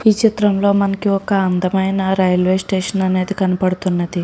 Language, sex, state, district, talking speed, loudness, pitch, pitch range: Telugu, female, Andhra Pradesh, Srikakulam, 125 wpm, -17 LUFS, 190 Hz, 185-200 Hz